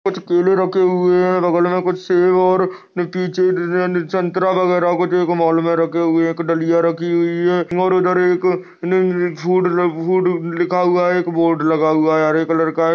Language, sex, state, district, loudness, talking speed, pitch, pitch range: Hindi, male, Uttar Pradesh, Jyotiba Phule Nagar, -16 LUFS, 205 wpm, 180 Hz, 170-180 Hz